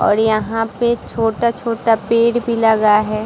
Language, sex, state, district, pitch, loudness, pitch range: Hindi, female, Bihar, Vaishali, 225 Hz, -16 LUFS, 220-235 Hz